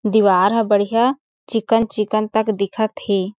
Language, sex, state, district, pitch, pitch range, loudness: Chhattisgarhi, female, Chhattisgarh, Sarguja, 215 Hz, 205-225 Hz, -18 LUFS